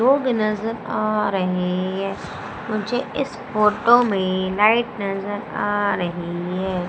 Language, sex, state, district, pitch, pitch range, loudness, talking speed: Hindi, female, Madhya Pradesh, Umaria, 205 Hz, 185-225 Hz, -21 LUFS, 120 wpm